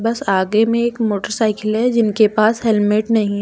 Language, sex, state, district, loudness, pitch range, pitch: Hindi, female, Jharkhand, Deoghar, -16 LUFS, 210-230 Hz, 220 Hz